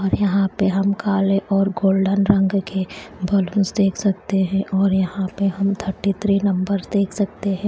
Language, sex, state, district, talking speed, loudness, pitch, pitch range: Hindi, female, Haryana, Charkhi Dadri, 180 wpm, -20 LUFS, 195 Hz, 195-200 Hz